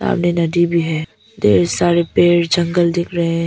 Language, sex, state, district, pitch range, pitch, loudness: Hindi, female, Arunachal Pradesh, Papum Pare, 165-175 Hz, 170 Hz, -16 LUFS